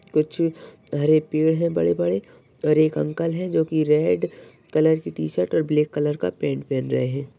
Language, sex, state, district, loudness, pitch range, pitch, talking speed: Hindi, male, Uttar Pradesh, Ghazipur, -22 LUFS, 130-155 Hz, 150 Hz, 180 wpm